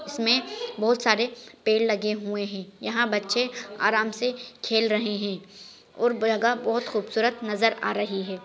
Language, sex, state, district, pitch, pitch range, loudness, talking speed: Hindi, female, Maharashtra, Solapur, 220 Hz, 210-235 Hz, -25 LUFS, 155 wpm